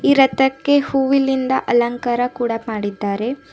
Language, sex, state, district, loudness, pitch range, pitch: Kannada, female, Karnataka, Bidar, -18 LUFS, 235-270 Hz, 255 Hz